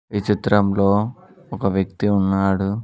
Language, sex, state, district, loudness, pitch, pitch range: Telugu, male, Telangana, Mahabubabad, -20 LUFS, 100 Hz, 95-105 Hz